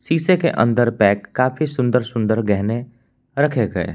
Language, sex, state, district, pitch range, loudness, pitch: Hindi, male, Jharkhand, Palamu, 110-130 Hz, -18 LUFS, 120 Hz